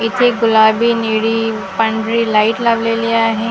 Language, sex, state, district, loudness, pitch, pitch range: Marathi, female, Maharashtra, Gondia, -14 LUFS, 225 Hz, 220-230 Hz